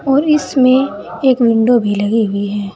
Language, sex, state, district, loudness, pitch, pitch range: Hindi, female, Uttar Pradesh, Saharanpur, -13 LUFS, 235 Hz, 205-265 Hz